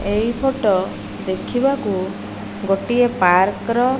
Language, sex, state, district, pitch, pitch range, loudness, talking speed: Odia, female, Odisha, Malkangiri, 200 Hz, 185-245 Hz, -19 LUFS, 105 wpm